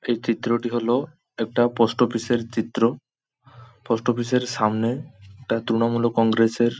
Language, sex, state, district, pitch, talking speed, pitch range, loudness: Bengali, male, West Bengal, Paschim Medinipur, 120 Hz, 130 wpm, 115-120 Hz, -23 LUFS